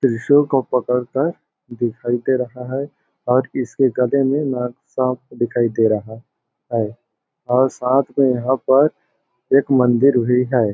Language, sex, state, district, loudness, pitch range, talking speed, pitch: Hindi, male, Chhattisgarh, Balrampur, -18 LUFS, 120-135 Hz, 140 wpm, 125 Hz